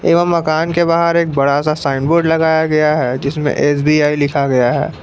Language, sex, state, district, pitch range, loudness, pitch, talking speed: Hindi, male, Jharkhand, Palamu, 140-165 Hz, -14 LUFS, 155 Hz, 200 wpm